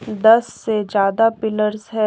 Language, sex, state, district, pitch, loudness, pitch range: Hindi, female, Jharkhand, Deoghar, 215 Hz, -17 LUFS, 210-225 Hz